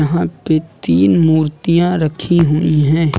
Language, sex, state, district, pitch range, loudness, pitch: Hindi, male, Uttar Pradesh, Lucknow, 150-165 Hz, -14 LUFS, 155 Hz